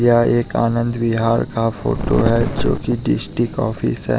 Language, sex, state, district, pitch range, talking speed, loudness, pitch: Hindi, male, Bihar, West Champaran, 115-120 Hz, 170 wpm, -18 LUFS, 115 Hz